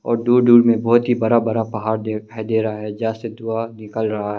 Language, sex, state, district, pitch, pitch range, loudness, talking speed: Hindi, male, Arunachal Pradesh, Longding, 115 Hz, 110-115 Hz, -18 LUFS, 245 wpm